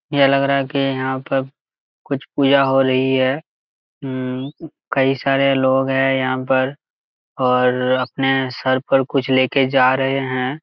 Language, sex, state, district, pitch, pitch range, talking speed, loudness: Hindi, male, Jharkhand, Jamtara, 135 Hz, 130-135 Hz, 150 wpm, -18 LUFS